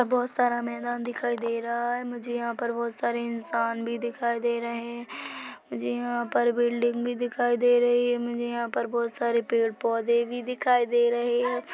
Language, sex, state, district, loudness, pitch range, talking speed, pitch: Hindi, male, Chhattisgarh, Korba, -27 LUFS, 235-245 Hz, 195 wpm, 240 Hz